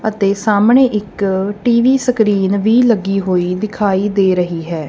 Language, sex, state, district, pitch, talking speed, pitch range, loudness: Punjabi, female, Punjab, Kapurthala, 205 Hz, 145 wpm, 190-220 Hz, -14 LUFS